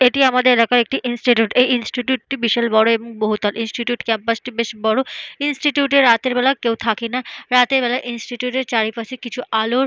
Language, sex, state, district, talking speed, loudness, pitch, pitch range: Bengali, female, Jharkhand, Jamtara, 205 wpm, -18 LUFS, 245 Hz, 230-255 Hz